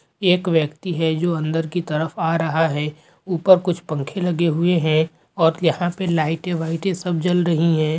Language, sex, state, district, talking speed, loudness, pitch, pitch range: Hindi, male, Chhattisgarh, Rajnandgaon, 190 wpm, -20 LUFS, 165 Hz, 160-175 Hz